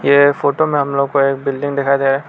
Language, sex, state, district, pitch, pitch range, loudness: Hindi, male, Arunachal Pradesh, Lower Dibang Valley, 140 Hz, 140-145 Hz, -15 LUFS